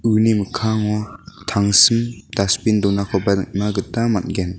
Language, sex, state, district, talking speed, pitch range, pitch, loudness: Garo, male, Meghalaya, West Garo Hills, 105 wpm, 100-110 Hz, 105 Hz, -18 LUFS